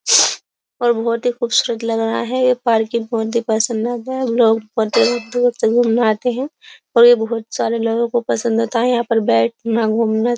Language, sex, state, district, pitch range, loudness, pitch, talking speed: Hindi, female, Uttar Pradesh, Jyotiba Phule Nagar, 225-240 Hz, -17 LUFS, 235 Hz, 200 wpm